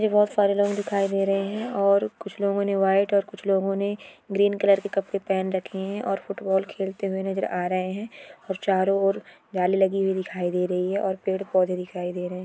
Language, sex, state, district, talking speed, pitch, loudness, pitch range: Hindi, female, Andhra Pradesh, Chittoor, 235 wpm, 195 Hz, -25 LUFS, 190-200 Hz